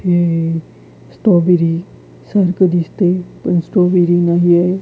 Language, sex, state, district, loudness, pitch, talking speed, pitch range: Marathi, female, Maharashtra, Gondia, -14 LUFS, 175 Hz, 85 wpm, 170-180 Hz